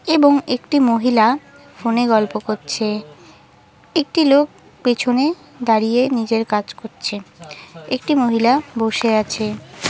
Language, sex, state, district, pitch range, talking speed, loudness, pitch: Bengali, female, West Bengal, Kolkata, 220-275 Hz, 105 wpm, -18 LUFS, 235 Hz